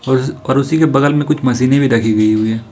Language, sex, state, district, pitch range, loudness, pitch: Hindi, male, Jharkhand, Ranchi, 115-140 Hz, -13 LUFS, 130 Hz